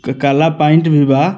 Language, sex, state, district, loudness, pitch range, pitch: Bhojpuri, male, Bihar, Muzaffarpur, -12 LUFS, 140-160 Hz, 150 Hz